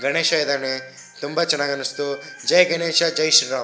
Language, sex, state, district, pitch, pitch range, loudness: Kannada, male, Karnataka, Shimoga, 145 Hz, 140-170 Hz, -20 LUFS